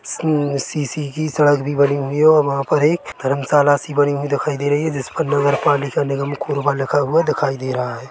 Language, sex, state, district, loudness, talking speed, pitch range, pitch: Hindi, male, Chhattisgarh, Korba, -18 LUFS, 235 wpm, 140-150 Hz, 145 Hz